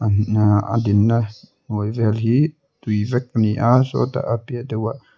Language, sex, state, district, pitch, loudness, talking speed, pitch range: Mizo, male, Mizoram, Aizawl, 115 Hz, -19 LUFS, 150 wpm, 105-120 Hz